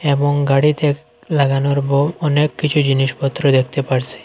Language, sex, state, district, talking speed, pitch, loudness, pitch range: Bengali, male, Assam, Hailakandi, 140 wpm, 140 Hz, -16 LUFS, 135-150 Hz